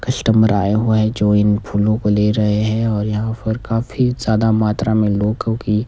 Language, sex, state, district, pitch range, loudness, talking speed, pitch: Hindi, male, Himachal Pradesh, Shimla, 105-110 Hz, -17 LUFS, 215 wpm, 110 Hz